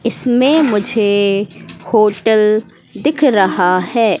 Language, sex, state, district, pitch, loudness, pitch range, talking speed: Hindi, female, Madhya Pradesh, Katni, 215 Hz, -13 LUFS, 200-240 Hz, 85 wpm